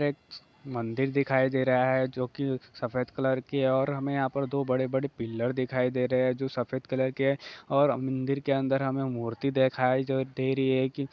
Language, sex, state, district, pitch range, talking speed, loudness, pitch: Hindi, male, Bihar, Saran, 130-135 Hz, 215 wpm, -28 LUFS, 130 Hz